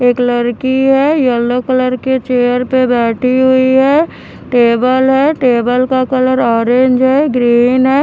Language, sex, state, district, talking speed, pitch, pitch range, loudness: Hindi, female, Haryana, Charkhi Dadri, 150 wpm, 255 Hz, 245-260 Hz, -11 LUFS